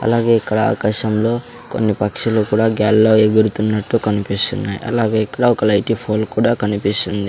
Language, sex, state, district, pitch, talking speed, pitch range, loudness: Telugu, male, Andhra Pradesh, Sri Satya Sai, 110 Hz, 140 wpm, 105-115 Hz, -16 LUFS